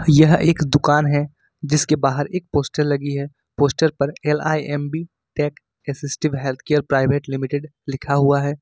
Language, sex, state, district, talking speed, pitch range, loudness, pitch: Hindi, male, Jharkhand, Ranchi, 145 wpm, 140-155 Hz, -20 LUFS, 145 Hz